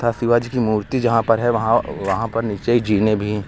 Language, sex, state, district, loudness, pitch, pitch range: Hindi, male, Uttar Pradesh, Lucknow, -19 LUFS, 115 Hz, 105-120 Hz